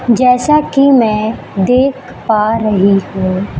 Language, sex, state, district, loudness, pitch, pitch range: Hindi, female, Chhattisgarh, Raipur, -12 LUFS, 225 Hz, 200-255 Hz